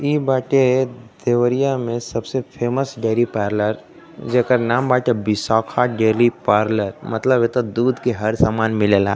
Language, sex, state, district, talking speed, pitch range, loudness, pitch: Bhojpuri, male, Uttar Pradesh, Deoria, 150 wpm, 110-125 Hz, -19 LUFS, 120 Hz